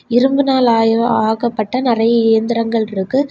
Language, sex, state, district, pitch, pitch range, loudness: Tamil, female, Tamil Nadu, Kanyakumari, 230 Hz, 225-250 Hz, -15 LUFS